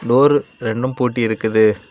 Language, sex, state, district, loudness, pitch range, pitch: Tamil, male, Tamil Nadu, Kanyakumari, -17 LUFS, 110-125 Hz, 115 Hz